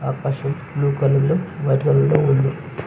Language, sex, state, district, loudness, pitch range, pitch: Telugu, male, Andhra Pradesh, Visakhapatnam, -19 LUFS, 135-150 Hz, 140 Hz